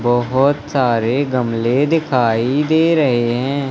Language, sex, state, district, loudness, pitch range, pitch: Hindi, male, Madhya Pradesh, Katni, -16 LUFS, 120-145 Hz, 130 Hz